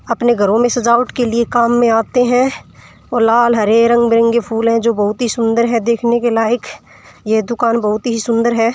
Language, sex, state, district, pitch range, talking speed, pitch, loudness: Marwari, female, Rajasthan, Churu, 225-240 Hz, 210 wpm, 235 Hz, -14 LUFS